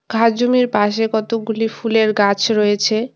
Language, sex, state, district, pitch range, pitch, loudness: Bengali, female, West Bengal, Cooch Behar, 215-230 Hz, 225 Hz, -16 LUFS